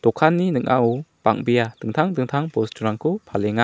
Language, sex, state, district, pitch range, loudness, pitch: Garo, male, Meghalaya, South Garo Hills, 110-155 Hz, -21 LUFS, 125 Hz